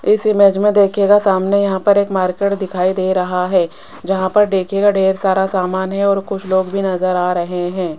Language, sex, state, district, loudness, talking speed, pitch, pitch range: Hindi, female, Rajasthan, Jaipur, -15 LUFS, 210 wpm, 190 Hz, 185-200 Hz